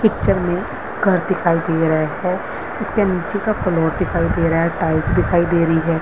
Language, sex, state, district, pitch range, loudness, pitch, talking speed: Hindi, female, Uttarakhand, Uttarkashi, 165-185 Hz, -18 LUFS, 170 Hz, 200 wpm